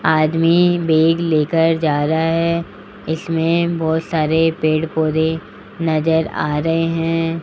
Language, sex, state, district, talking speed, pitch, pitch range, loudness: Hindi, male, Rajasthan, Jaipur, 120 wpm, 160 Hz, 160-165 Hz, -17 LUFS